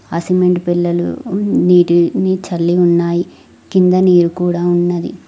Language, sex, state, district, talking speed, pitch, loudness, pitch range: Telugu, female, Telangana, Mahabubabad, 115 wpm, 175 Hz, -14 LUFS, 175-180 Hz